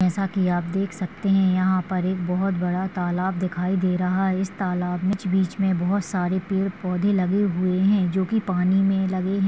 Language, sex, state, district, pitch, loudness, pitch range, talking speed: Hindi, female, Maharashtra, Solapur, 185 Hz, -23 LUFS, 180-195 Hz, 215 wpm